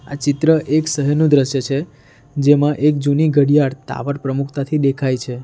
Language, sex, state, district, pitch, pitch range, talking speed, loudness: Gujarati, male, Gujarat, Valsad, 145 Hz, 135-150 Hz, 165 wpm, -17 LUFS